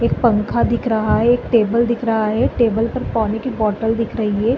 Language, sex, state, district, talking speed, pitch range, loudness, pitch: Hindi, female, Chhattisgarh, Bastar, 235 wpm, 220-235 Hz, -17 LUFS, 230 Hz